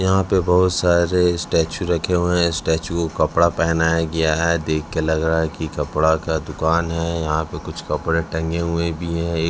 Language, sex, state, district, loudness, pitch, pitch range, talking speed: Hindi, male, Chhattisgarh, Raipur, -20 LUFS, 85 Hz, 80-85 Hz, 195 wpm